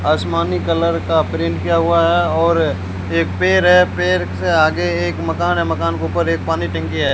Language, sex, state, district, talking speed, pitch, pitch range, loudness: Hindi, male, Rajasthan, Bikaner, 200 wpm, 85 Hz, 85-90 Hz, -16 LUFS